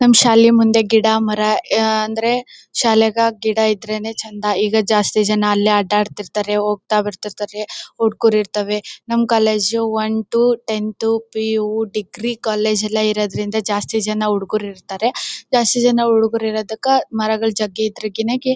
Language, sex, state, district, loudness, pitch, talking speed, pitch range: Kannada, female, Karnataka, Bellary, -17 LUFS, 220 Hz, 140 wpm, 210-225 Hz